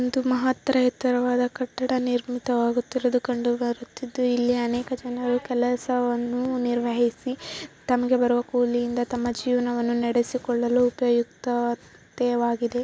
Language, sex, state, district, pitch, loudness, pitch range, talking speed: Kannada, female, Karnataka, Raichur, 245 Hz, -25 LUFS, 240-250 Hz, 95 wpm